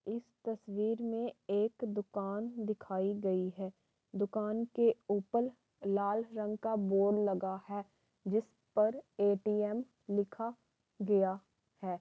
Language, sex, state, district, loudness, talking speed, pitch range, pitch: Hindi, female, Uttar Pradesh, Varanasi, -36 LUFS, 115 wpm, 200-225 Hz, 205 Hz